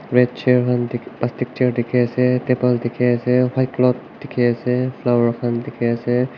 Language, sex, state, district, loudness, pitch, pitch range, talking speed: Nagamese, male, Nagaland, Kohima, -19 LUFS, 125 Hz, 120-125 Hz, 180 wpm